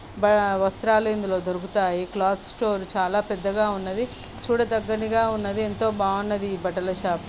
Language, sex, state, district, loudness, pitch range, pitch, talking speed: Telugu, female, Karnataka, Raichur, -24 LUFS, 190-215 Hz, 205 Hz, 155 wpm